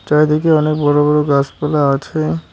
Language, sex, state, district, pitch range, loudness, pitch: Bengali, male, West Bengal, Cooch Behar, 140-150 Hz, -14 LUFS, 145 Hz